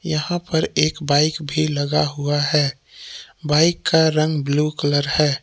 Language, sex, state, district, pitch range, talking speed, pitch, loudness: Hindi, male, Jharkhand, Palamu, 145-155 Hz, 155 wpm, 150 Hz, -19 LUFS